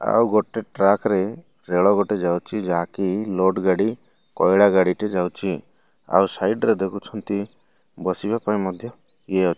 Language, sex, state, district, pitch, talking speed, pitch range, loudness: Odia, male, Odisha, Malkangiri, 100 Hz, 140 wpm, 95-105 Hz, -21 LUFS